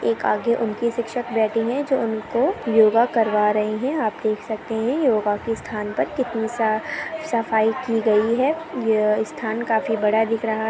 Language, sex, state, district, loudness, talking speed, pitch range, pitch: Hindi, female, Chhattisgarh, Sarguja, -21 LUFS, 185 wpm, 220-235 Hz, 225 Hz